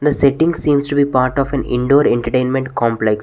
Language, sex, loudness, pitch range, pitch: English, male, -16 LUFS, 125-145 Hz, 135 Hz